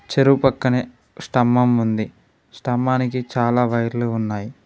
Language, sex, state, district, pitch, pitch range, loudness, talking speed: Telugu, male, Telangana, Mahabubabad, 125 Hz, 115-125 Hz, -19 LUFS, 105 wpm